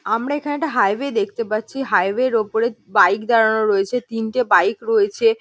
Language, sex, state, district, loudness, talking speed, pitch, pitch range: Bengali, female, West Bengal, North 24 Parganas, -19 LUFS, 165 wpm, 235 Hz, 220-280 Hz